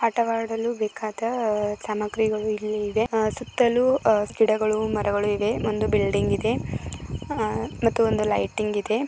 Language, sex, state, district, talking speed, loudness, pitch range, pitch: Kannada, female, Karnataka, Belgaum, 120 wpm, -24 LUFS, 210-225 Hz, 215 Hz